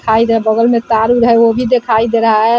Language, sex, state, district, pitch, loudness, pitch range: Hindi, female, Bihar, Vaishali, 230 Hz, -11 LUFS, 225-235 Hz